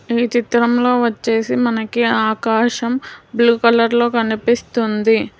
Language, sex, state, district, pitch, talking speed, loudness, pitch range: Telugu, female, Telangana, Hyderabad, 235 Hz, 110 wpm, -16 LUFS, 225-240 Hz